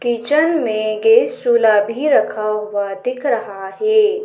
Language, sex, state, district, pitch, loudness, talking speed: Hindi, female, Madhya Pradesh, Dhar, 240 Hz, -16 LUFS, 140 wpm